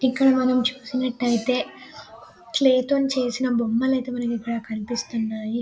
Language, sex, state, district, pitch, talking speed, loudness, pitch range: Telugu, female, Telangana, Nalgonda, 250 Hz, 115 wpm, -23 LUFS, 235-260 Hz